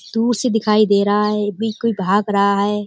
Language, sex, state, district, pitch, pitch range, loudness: Hindi, female, Uttar Pradesh, Budaun, 210 Hz, 205-225 Hz, -17 LUFS